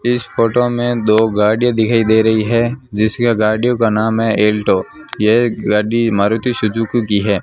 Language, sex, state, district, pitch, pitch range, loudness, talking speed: Hindi, male, Rajasthan, Bikaner, 110 Hz, 105-120 Hz, -15 LUFS, 170 wpm